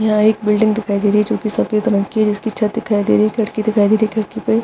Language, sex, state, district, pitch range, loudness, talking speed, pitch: Hindi, female, Chhattisgarh, Bastar, 210-220 Hz, -16 LUFS, 335 wpm, 215 Hz